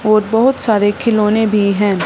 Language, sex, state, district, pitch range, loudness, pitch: Hindi, female, Punjab, Fazilka, 205-225 Hz, -14 LUFS, 215 Hz